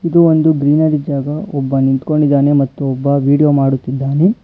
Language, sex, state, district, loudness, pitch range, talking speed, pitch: Kannada, male, Karnataka, Bangalore, -13 LUFS, 135-155 Hz, 135 wpm, 140 Hz